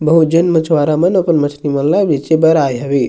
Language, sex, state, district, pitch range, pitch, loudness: Chhattisgarhi, male, Chhattisgarh, Sarguja, 145-165 Hz, 155 Hz, -13 LUFS